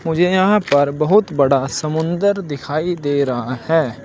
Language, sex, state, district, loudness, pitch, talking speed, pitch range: Hindi, male, Uttar Pradesh, Shamli, -17 LUFS, 155 Hz, 150 wpm, 140-175 Hz